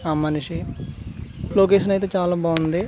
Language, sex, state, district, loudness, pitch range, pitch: Telugu, male, Andhra Pradesh, Manyam, -21 LUFS, 160-195 Hz, 175 Hz